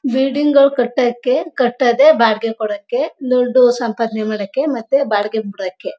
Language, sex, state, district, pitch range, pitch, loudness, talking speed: Kannada, male, Karnataka, Mysore, 225-270 Hz, 245 Hz, -16 LUFS, 120 wpm